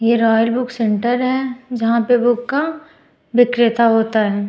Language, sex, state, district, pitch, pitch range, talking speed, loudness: Hindi, female, Uttar Pradesh, Muzaffarnagar, 240 Hz, 225-250 Hz, 160 wpm, -16 LUFS